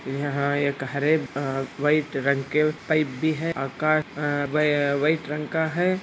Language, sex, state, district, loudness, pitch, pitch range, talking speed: Hindi, female, Andhra Pradesh, Anantapur, -24 LUFS, 150 Hz, 140-155 Hz, 170 wpm